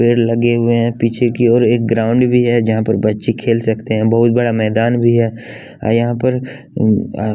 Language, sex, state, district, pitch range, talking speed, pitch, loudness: Hindi, male, Bihar, West Champaran, 110-120 Hz, 230 wpm, 115 Hz, -14 LUFS